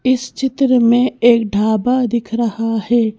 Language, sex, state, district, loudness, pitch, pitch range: Hindi, female, Madhya Pradesh, Bhopal, -15 LUFS, 235 Hz, 225-250 Hz